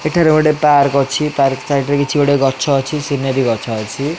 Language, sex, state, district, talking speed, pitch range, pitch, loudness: Odia, male, Odisha, Khordha, 200 wpm, 135-150 Hz, 140 Hz, -15 LUFS